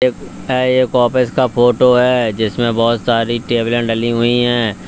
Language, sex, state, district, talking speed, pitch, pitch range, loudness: Hindi, male, Uttar Pradesh, Lalitpur, 170 wpm, 120 Hz, 115-125 Hz, -14 LUFS